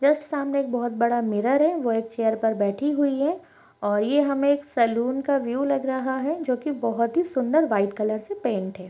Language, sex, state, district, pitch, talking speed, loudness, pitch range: Hindi, female, Uttar Pradesh, Jalaun, 255 Hz, 230 wpm, -24 LUFS, 225-285 Hz